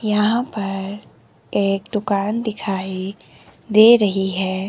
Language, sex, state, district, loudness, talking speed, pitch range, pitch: Hindi, female, Himachal Pradesh, Shimla, -19 LUFS, 100 wpm, 195-210 Hz, 200 Hz